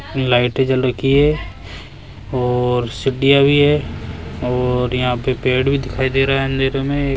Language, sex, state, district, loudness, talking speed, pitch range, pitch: Hindi, male, Rajasthan, Jaipur, -17 LUFS, 175 wpm, 125-135 Hz, 130 Hz